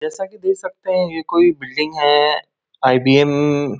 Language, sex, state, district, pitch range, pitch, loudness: Hindi, male, West Bengal, Kolkata, 145-180 Hz, 150 Hz, -17 LUFS